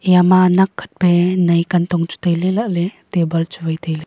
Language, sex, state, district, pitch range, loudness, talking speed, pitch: Wancho, female, Arunachal Pradesh, Longding, 170-185 Hz, -16 LUFS, 220 wpm, 175 Hz